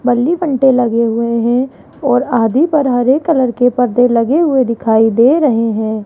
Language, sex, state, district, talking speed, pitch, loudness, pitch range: Hindi, female, Rajasthan, Jaipur, 180 wpm, 245 Hz, -13 LUFS, 230-270 Hz